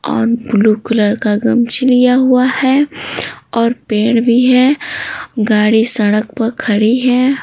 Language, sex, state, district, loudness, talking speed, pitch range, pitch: Hindi, female, Bihar, Patna, -13 LUFS, 135 wpm, 220-255 Hz, 235 Hz